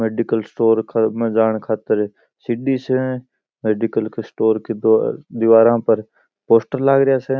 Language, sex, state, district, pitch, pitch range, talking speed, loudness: Marwari, male, Rajasthan, Churu, 115 Hz, 110-125 Hz, 120 wpm, -18 LUFS